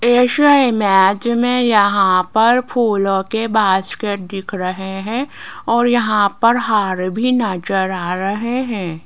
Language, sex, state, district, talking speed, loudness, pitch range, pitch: Hindi, female, Rajasthan, Jaipur, 130 wpm, -16 LUFS, 190-240 Hz, 210 Hz